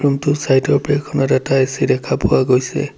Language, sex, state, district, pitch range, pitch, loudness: Assamese, male, Assam, Sonitpur, 135-145 Hz, 140 Hz, -16 LUFS